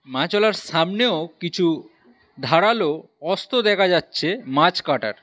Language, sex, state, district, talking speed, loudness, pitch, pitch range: Bengali, male, West Bengal, Alipurduar, 105 wpm, -20 LUFS, 175 Hz, 160-210 Hz